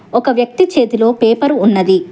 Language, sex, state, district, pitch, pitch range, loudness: Telugu, female, Telangana, Hyderabad, 235 Hz, 225-265 Hz, -12 LUFS